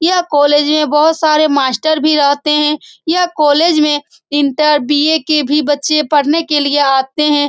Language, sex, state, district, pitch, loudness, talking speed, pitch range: Hindi, female, Bihar, Saran, 300 Hz, -12 LUFS, 175 wpm, 290-310 Hz